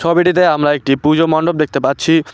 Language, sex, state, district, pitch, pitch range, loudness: Bengali, male, West Bengal, Cooch Behar, 155 Hz, 145-170 Hz, -13 LUFS